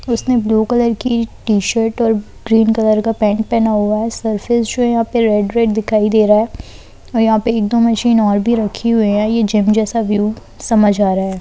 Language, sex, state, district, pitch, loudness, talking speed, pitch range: Hindi, female, Bihar, Saran, 220 Hz, -14 LUFS, 225 wpm, 210-230 Hz